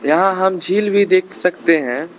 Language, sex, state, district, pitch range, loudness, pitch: Hindi, male, Arunachal Pradesh, Lower Dibang Valley, 180-195 Hz, -16 LUFS, 185 Hz